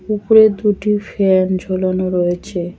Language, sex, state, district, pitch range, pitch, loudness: Bengali, female, West Bengal, Cooch Behar, 185-210 Hz, 190 Hz, -15 LUFS